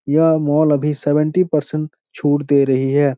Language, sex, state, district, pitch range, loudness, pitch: Hindi, male, Bihar, Supaul, 145-155 Hz, -17 LUFS, 145 Hz